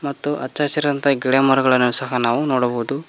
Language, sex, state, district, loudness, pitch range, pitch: Kannada, male, Karnataka, Koppal, -18 LUFS, 125-145 Hz, 135 Hz